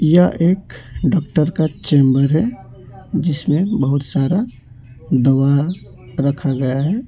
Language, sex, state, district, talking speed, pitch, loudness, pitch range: Hindi, male, West Bengal, Alipurduar, 110 wpm, 140 Hz, -17 LUFS, 130-170 Hz